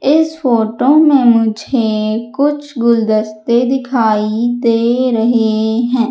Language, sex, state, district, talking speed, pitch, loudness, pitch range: Hindi, female, Madhya Pradesh, Umaria, 100 wpm, 235 Hz, -13 LUFS, 220-260 Hz